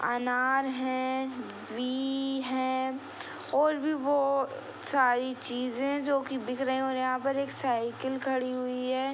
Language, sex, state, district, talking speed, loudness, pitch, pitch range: Hindi, female, Bihar, East Champaran, 140 wpm, -30 LUFS, 260 Hz, 255-270 Hz